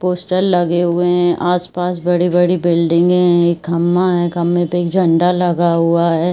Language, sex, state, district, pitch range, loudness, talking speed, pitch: Hindi, female, Uttar Pradesh, Varanasi, 170-180 Hz, -15 LUFS, 170 wpm, 175 Hz